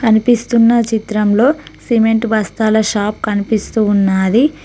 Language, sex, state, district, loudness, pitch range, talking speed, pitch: Telugu, female, Telangana, Mahabubabad, -14 LUFS, 210-230 Hz, 90 wpm, 220 Hz